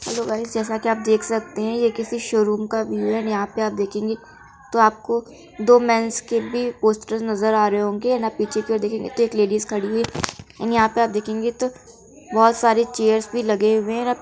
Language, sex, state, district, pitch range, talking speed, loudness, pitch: Hindi, female, Uttar Pradesh, Budaun, 215-230 Hz, 225 wpm, -21 LUFS, 220 Hz